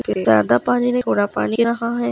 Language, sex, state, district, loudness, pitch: Hindi, female, Chhattisgarh, Raigarh, -18 LUFS, 215 Hz